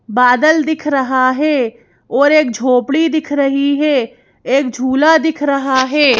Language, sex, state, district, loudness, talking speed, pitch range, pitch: Hindi, female, Madhya Pradesh, Bhopal, -13 LUFS, 145 wpm, 255-300 Hz, 275 Hz